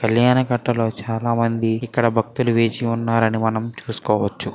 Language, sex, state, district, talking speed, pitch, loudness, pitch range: Telugu, male, Andhra Pradesh, Srikakulam, 145 wpm, 115 Hz, -20 LUFS, 115-120 Hz